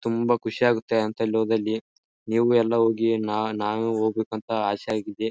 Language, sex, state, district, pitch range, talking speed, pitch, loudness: Kannada, male, Karnataka, Bijapur, 110-115 Hz, 145 wpm, 110 Hz, -24 LUFS